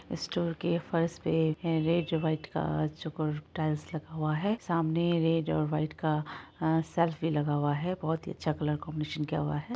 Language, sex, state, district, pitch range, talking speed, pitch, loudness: Hindi, female, Bihar, Araria, 150-170 Hz, 170 wpm, 160 Hz, -31 LUFS